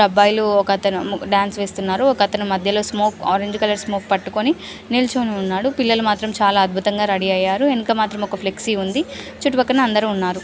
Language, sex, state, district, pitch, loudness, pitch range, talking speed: Telugu, female, Andhra Pradesh, Srikakulam, 205 Hz, -19 LUFS, 195-220 Hz, 160 wpm